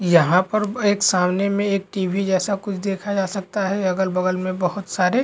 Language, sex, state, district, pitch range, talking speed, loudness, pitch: Hindi, male, Bihar, Araria, 185-200 Hz, 205 wpm, -21 LUFS, 195 Hz